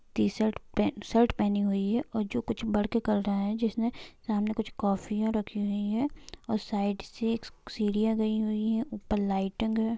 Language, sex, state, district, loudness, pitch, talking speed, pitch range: Hindi, female, Bihar, Sitamarhi, -30 LUFS, 215 Hz, 190 wpm, 205-225 Hz